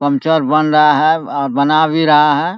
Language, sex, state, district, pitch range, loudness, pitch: Hindi, male, Bihar, Araria, 145-155 Hz, -12 LUFS, 150 Hz